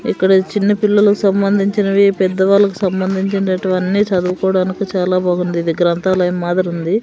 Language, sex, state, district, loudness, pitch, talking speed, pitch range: Telugu, female, Andhra Pradesh, Sri Satya Sai, -15 LUFS, 190 Hz, 120 wpm, 180-200 Hz